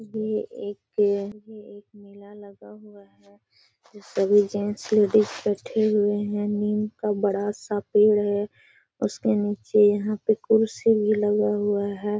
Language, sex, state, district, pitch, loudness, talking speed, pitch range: Hindi, female, Bihar, Gaya, 205 Hz, -23 LUFS, 145 wpm, 205-210 Hz